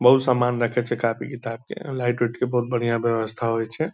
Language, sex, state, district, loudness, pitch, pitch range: Hindi, male, Bihar, Purnia, -24 LUFS, 120 Hz, 115-125 Hz